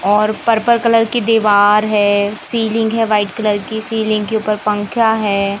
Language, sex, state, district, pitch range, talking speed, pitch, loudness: Hindi, male, Madhya Pradesh, Katni, 205-225 Hz, 170 wpm, 215 Hz, -14 LUFS